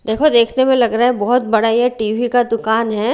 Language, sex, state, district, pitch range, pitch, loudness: Hindi, female, Bihar, Patna, 225-245 Hz, 235 Hz, -15 LUFS